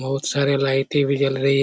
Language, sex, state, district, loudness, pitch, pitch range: Hindi, male, Chhattisgarh, Korba, -20 LUFS, 140 Hz, 135-140 Hz